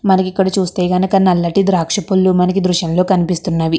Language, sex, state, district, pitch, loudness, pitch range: Telugu, female, Andhra Pradesh, Krishna, 185 Hz, -14 LUFS, 180-190 Hz